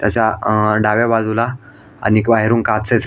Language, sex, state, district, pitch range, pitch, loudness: Marathi, male, Maharashtra, Aurangabad, 105-115 Hz, 110 Hz, -15 LUFS